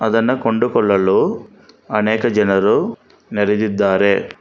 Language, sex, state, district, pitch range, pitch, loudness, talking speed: Kannada, male, Karnataka, Bangalore, 100-115 Hz, 105 Hz, -16 LUFS, 70 wpm